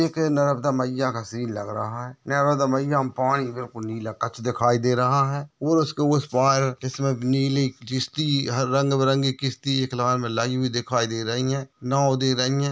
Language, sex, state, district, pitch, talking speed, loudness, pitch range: Hindi, male, Chhattisgarh, Raigarh, 130 Hz, 200 wpm, -23 LUFS, 125-140 Hz